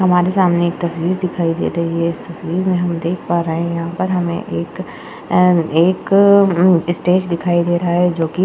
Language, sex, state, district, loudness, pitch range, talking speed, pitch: Hindi, female, Uttar Pradesh, Jyotiba Phule Nagar, -16 LUFS, 170-180 Hz, 200 wpm, 175 Hz